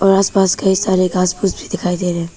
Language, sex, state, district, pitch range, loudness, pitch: Hindi, female, Arunachal Pradesh, Papum Pare, 180-195 Hz, -16 LUFS, 185 Hz